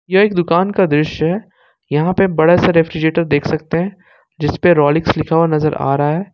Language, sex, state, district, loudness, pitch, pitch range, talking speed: Hindi, male, Jharkhand, Ranchi, -15 LUFS, 165 Hz, 155-180 Hz, 220 wpm